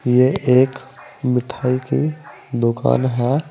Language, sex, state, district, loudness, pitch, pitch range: Hindi, male, Uttar Pradesh, Saharanpur, -19 LUFS, 130 Hz, 125-135 Hz